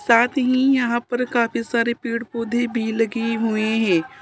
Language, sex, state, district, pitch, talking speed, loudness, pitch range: Hindi, female, Uttar Pradesh, Saharanpur, 235 Hz, 170 wpm, -21 LUFS, 225-245 Hz